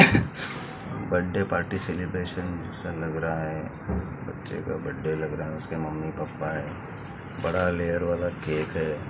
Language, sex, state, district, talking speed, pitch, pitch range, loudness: Hindi, male, Maharashtra, Mumbai Suburban, 145 wpm, 85 Hz, 80-90 Hz, -29 LUFS